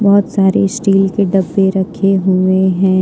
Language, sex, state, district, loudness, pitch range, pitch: Hindi, female, Jharkhand, Ranchi, -13 LUFS, 190-195 Hz, 195 Hz